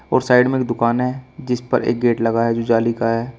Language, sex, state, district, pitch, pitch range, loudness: Hindi, male, Uttar Pradesh, Shamli, 120 Hz, 115-125 Hz, -18 LUFS